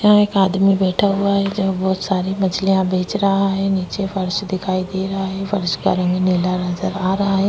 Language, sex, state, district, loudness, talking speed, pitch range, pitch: Hindi, female, Maharashtra, Chandrapur, -18 LUFS, 215 wpm, 185-195 Hz, 190 Hz